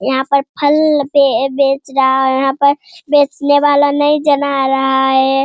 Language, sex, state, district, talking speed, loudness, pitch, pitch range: Hindi, female, Bihar, Jamui, 165 wpm, -13 LUFS, 280 Hz, 270-290 Hz